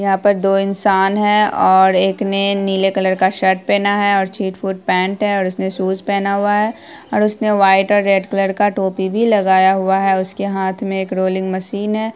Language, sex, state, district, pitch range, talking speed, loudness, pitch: Hindi, female, Bihar, Saharsa, 190-205 Hz, 205 wpm, -16 LUFS, 195 Hz